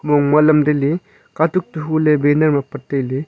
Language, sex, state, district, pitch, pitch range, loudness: Wancho, male, Arunachal Pradesh, Longding, 150 Hz, 145-155 Hz, -16 LUFS